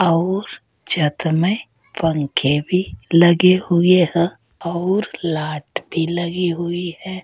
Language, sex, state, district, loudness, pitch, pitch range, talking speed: Hindi, female, Uttar Pradesh, Saharanpur, -18 LUFS, 170 Hz, 165-180 Hz, 115 wpm